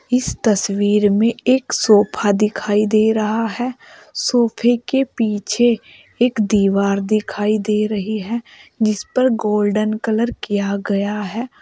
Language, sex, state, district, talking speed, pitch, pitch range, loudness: Hindi, female, Uttar Pradesh, Saharanpur, 130 wpm, 215 Hz, 205-235 Hz, -18 LUFS